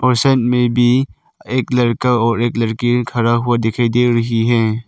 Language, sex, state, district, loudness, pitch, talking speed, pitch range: Hindi, male, Arunachal Pradesh, Lower Dibang Valley, -15 LUFS, 120 Hz, 185 wpm, 115-125 Hz